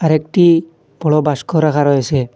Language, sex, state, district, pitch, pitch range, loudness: Bengali, male, Assam, Hailakandi, 155 Hz, 145-165 Hz, -14 LUFS